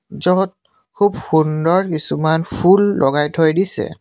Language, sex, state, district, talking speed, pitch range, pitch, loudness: Assamese, male, Assam, Sonitpur, 120 wpm, 155-190 Hz, 175 Hz, -16 LUFS